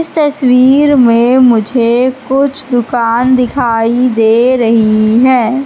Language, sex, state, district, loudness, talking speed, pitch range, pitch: Hindi, female, Madhya Pradesh, Katni, -9 LUFS, 105 wpm, 230-260 Hz, 250 Hz